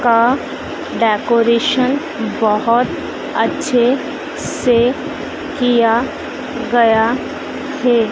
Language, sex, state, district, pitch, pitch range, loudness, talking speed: Hindi, female, Madhya Pradesh, Dhar, 245 Hz, 230-275 Hz, -16 LUFS, 60 wpm